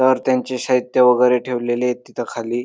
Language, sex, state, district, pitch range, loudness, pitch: Marathi, male, Maharashtra, Dhule, 120-130 Hz, -18 LUFS, 125 Hz